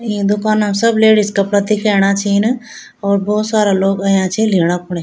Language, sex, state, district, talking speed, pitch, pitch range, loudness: Garhwali, female, Uttarakhand, Tehri Garhwal, 190 wpm, 205 Hz, 195-215 Hz, -14 LUFS